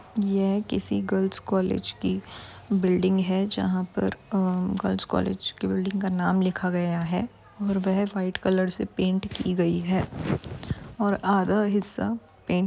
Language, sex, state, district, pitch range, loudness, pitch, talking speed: Hindi, female, Uttar Pradesh, Varanasi, 175-195 Hz, -26 LUFS, 185 Hz, 155 wpm